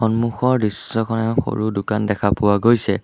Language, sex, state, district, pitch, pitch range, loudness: Assamese, male, Assam, Sonitpur, 110 Hz, 105-115 Hz, -19 LUFS